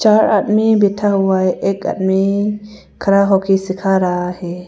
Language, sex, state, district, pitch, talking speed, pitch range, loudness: Hindi, female, Arunachal Pradesh, Papum Pare, 195 Hz, 155 wpm, 190-210 Hz, -15 LUFS